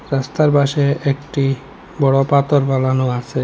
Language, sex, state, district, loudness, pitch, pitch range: Bengali, male, Assam, Hailakandi, -17 LUFS, 135 Hz, 135-140 Hz